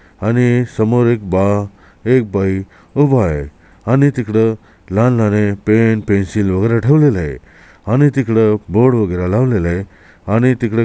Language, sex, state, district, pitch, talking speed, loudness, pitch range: Marathi, male, Maharashtra, Chandrapur, 110 Hz, 135 wpm, -14 LUFS, 95-120 Hz